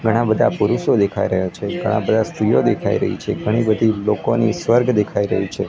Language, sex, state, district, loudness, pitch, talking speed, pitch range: Gujarati, male, Gujarat, Gandhinagar, -18 LUFS, 110 Hz, 200 wpm, 100-115 Hz